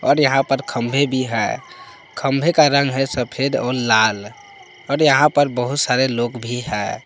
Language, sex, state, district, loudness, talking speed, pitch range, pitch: Hindi, male, Jharkhand, Palamu, -18 LUFS, 180 wpm, 125-145 Hz, 135 Hz